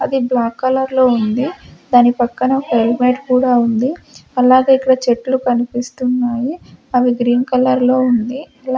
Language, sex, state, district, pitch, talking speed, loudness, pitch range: Telugu, female, Andhra Pradesh, Sri Satya Sai, 250 Hz, 145 wpm, -15 LUFS, 245-260 Hz